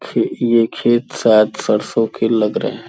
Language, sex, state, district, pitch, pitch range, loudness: Hindi, male, Uttar Pradesh, Gorakhpur, 115 Hz, 110-120 Hz, -16 LUFS